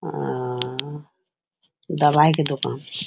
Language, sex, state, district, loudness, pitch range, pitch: Angika, female, Bihar, Bhagalpur, -22 LUFS, 140-165 Hz, 150 Hz